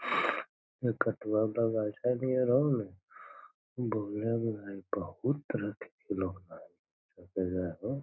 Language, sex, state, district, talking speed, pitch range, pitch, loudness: Magahi, male, Bihar, Lakhisarai, 75 wpm, 95-125 Hz, 110 Hz, -33 LUFS